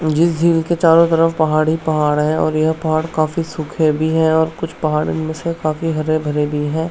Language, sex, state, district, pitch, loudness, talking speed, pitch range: Hindi, male, Uttarakhand, Tehri Garhwal, 160 Hz, -16 LUFS, 215 wpm, 155-165 Hz